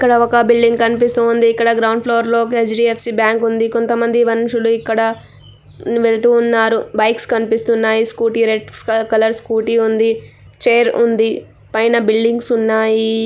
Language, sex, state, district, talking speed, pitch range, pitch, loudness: Telugu, female, Andhra Pradesh, Anantapur, 130 wpm, 225-235 Hz, 230 Hz, -14 LUFS